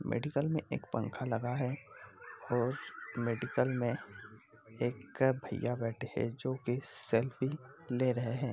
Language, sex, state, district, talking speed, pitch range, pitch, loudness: Hindi, male, Bihar, Sitamarhi, 140 wpm, 115-130 Hz, 125 Hz, -36 LUFS